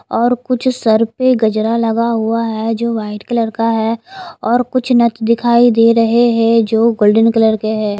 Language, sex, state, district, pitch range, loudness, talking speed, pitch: Hindi, female, Himachal Pradesh, Shimla, 220-240 Hz, -13 LUFS, 190 wpm, 230 Hz